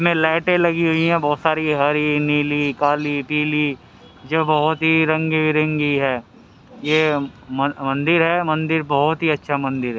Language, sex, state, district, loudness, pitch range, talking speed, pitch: Hindi, male, Haryana, Rohtak, -19 LUFS, 145-160 Hz, 160 wpm, 150 Hz